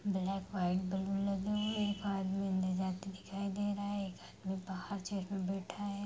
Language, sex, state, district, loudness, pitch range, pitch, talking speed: Hindi, female, Bihar, Purnia, -38 LUFS, 190-200 Hz, 195 Hz, 200 wpm